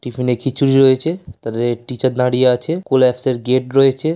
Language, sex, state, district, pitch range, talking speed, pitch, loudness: Bengali, male, West Bengal, Paschim Medinipur, 125-135 Hz, 160 wpm, 130 Hz, -16 LUFS